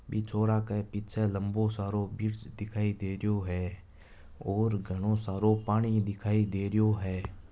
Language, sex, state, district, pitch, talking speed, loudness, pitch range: Marwari, male, Rajasthan, Nagaur, 105 Hz, 145 wpm, -31 LUFS, 95-110 Hz